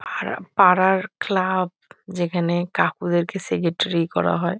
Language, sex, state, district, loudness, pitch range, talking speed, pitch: Bengali, female, West Bengal, Kolkata, -21 LUFS, 175-190 Hz, 105 wpm, 180 Hz